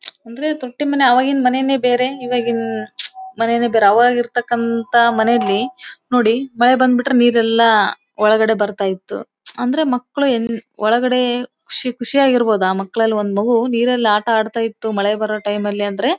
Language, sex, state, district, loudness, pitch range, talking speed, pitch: Kannada, female, Karnataka, Bellary, -16 LUFS, 215-250 Hz, 135 wpm, 235 Hz